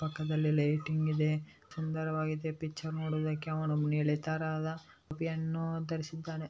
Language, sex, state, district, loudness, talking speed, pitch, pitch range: Kannada, male, Karnataka, Bellary, -34 LUFS, 100 wpm, 155 Hz, 155-160 Hz